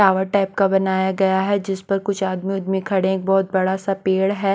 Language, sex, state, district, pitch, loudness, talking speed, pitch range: Hindi, female, Maharashtra, Washim, 195 Hz, -20 LUFS, 250 wpm, 190-195 Hz